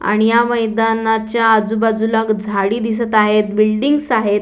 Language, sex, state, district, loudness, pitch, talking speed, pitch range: Marathi, female, Maharashtra, Aurangabad, -15 LUFS, 225 Hz, 135 wpm, 215-225 Hz